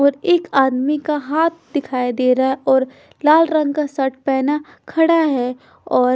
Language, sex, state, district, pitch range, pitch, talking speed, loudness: Hindi, female, Bihar, Patna, 265-305 Hz, 285 Hz, 175 wpm, -17 LUFS